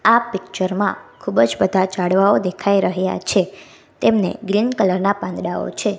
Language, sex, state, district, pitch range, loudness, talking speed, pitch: Gujarati, female, Gujarat, Gandhinagar, 185-205 Hz, -19 LUFS, 150 wpm, 195 Hz